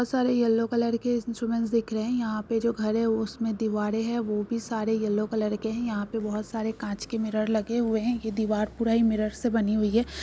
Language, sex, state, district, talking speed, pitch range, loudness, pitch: Marwari, female, Rajasthan, Nagaur, 205 wpm, 215-235 Hz, -27 LUFS, 225 Hz